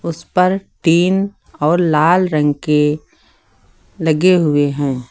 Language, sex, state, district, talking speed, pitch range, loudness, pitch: Hindi, male, Uttar Pradesh, Lucknow, 115 wpm, 150-180 Hz, -15 LUFS, 160 Hz